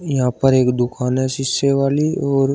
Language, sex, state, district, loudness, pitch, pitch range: Hindi, male, Uttar Pradesh, Shamli, -18 LUFS, 135 Hz, 125-140 Hz